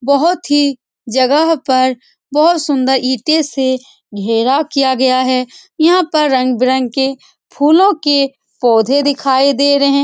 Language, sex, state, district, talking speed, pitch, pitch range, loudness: Hindi, female, Bihar, Supaul, 135 wpm, 275 Hz, 260-300 Hz, -13 LUFS